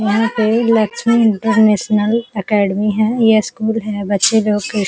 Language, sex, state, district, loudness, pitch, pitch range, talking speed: Hindi, female, Uttar Pradesh, Jalaun, -15 LUFS, 215 Hz, 210-225 Hz, 160 wpm